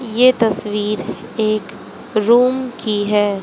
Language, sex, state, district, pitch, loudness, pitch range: Hindi, female, Haryana, Jhajjar, 215 Hz, -17 LUFS, 210-235 Hz